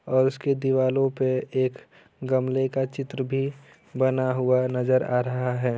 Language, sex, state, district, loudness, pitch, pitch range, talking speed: Hindi, male, Bihar, Lakhisarai, -25 LUFS, 130 Hz, 130-135 Hz, 155 wpm